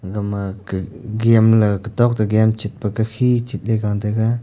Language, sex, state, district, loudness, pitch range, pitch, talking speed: Wancho, male, Arunachal Pradesh, Longding, -18 LUFS, 105-115 Hz, 110 Hz, 215 wpm